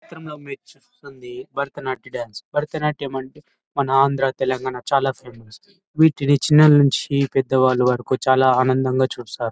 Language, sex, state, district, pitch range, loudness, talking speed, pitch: Telugu, male, Telangana, Karimnagar, 130-145 Hz, -19 LUFS, 140 wpm, 135 Hz